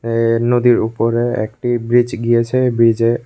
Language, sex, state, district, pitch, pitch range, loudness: Bengali, male, Tripura, West Tripura, 120 Hz, 115-120 Hz, -15 LUFS